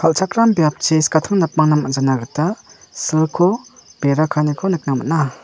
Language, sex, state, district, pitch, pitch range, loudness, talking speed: Garo, male, Meghalaya, West Garo Hills, 155 Hz, 150-190 Hz, -17 LUFS, 120 wpm